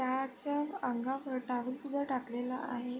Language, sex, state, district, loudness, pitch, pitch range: Marathi, female, Maharashtra, Sindhudurg, -37 LUFS, 255 Hz, 250-270 Hz